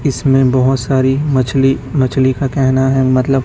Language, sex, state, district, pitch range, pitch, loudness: Hindi, male, Chhattisgarh, Raipur, 130-135 Hz, 135 Hz, -13 LUFS